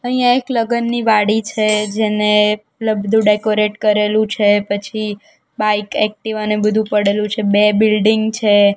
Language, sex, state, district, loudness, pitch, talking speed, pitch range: Gujarati, female, Gujarat, Gandhinagar, -15 LUFS, 215 Hz, 135 wpm, 210-220 Hz